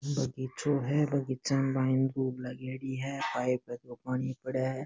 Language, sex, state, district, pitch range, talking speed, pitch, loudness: Rajasthani, male, Rajasthan, Nagaur, 130-135 Hz, 175 wpm, 130 Hz, -32 LUFS